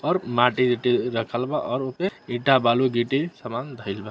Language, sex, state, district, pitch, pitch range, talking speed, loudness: Maithili, male, Bihar, Samastipur, 125 Hz, 120-135 Hz, 205 wpm, -23 LUFS